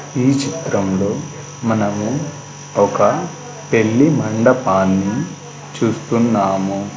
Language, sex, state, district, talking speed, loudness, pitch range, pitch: Telugu, male, Telangana, Karimnagar, 70 wpm, -17 LUFS, 100-130 Hz, 110 Hz